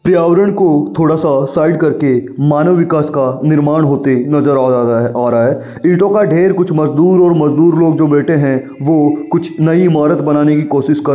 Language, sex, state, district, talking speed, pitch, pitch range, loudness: Hindi, male, Uttar Pradesh, Varanasi, 210 wpm, 150 Hz, 140-165 Hz, -11 LUFS